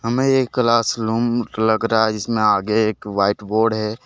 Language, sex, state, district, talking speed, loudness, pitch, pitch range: Hindi, male, Jharkhand, Deoghar, 190 wpm, -19 LUFS, 110 Hz, 110-115 Hz